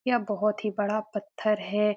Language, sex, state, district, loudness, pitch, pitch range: Hindi, female, Bihar, Supaul, -28 LUFS, 210 Hz, 210-215 Hz